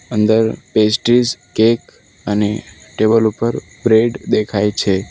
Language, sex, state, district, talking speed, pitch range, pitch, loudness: Gujarati, male, Gujarat, Valsad, 105 wpm, 105-115 Hz, 110 Hz, -16 LUFS